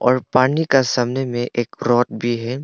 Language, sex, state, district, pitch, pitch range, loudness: Hindi, male, Arunachal Pradesh, Longding, 125 Hz, 120-130 Hz, -19 LUFS